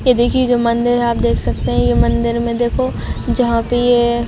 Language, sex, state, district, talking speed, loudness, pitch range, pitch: Hindi, female, Chhattisgarh, Raigarh, 225 wpm, -16 LUFS, 235-245 Hz, 240 Hz